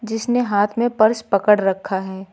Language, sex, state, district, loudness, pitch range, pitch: Hindi, female, Uttar Pradesh, Lucknow, -18 LUFS, 195-225 Hz, 210 Hz